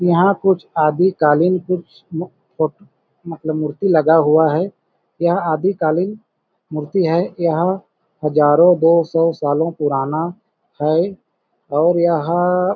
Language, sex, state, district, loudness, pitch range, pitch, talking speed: Hindi, male, Chhattisgarh, Balrampur, -17 LUFS, 155-180 Hz, 170 Hz, 120 wpm